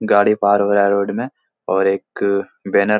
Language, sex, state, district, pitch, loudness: Hindi, male, Bihar, Supaul, 100 Hz, -17 LUFS